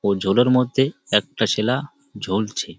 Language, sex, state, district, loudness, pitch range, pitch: Bengali, male, West Bengal, Malda, -20 LUFS, 105-130 Hz, 115 Hz